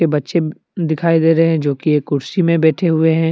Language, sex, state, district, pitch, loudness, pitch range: Hindi, male, Jharkhand, Deoghar, 160 Hz, -16 LUFS, 155-165 Hz